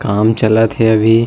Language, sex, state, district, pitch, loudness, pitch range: Chhattisgarhi, male, Chhattisgarh, Sarguja, 110 Hz, -12 LUFS, 110-115 Hz